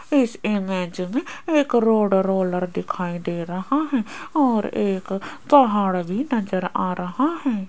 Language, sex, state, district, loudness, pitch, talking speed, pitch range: Hindi, female, Rajasthan, Jaipur, -22 LUFS, 205 Hz, 140 wpm, 185-275 Hz